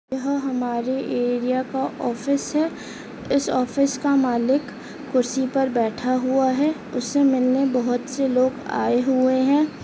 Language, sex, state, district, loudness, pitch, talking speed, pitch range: Hindi, female, Chhattisgarh, Rajnandgaon, -22 LUFS, 260 Hz, 140 wpm, 250-275 Hz